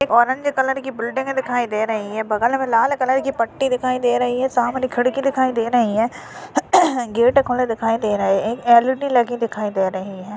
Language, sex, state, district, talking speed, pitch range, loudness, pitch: Hindi, male, Uttarakhand, Uttarkashi, 200 wpm, 225-265 Hz, -19 LUFS, 245 Hz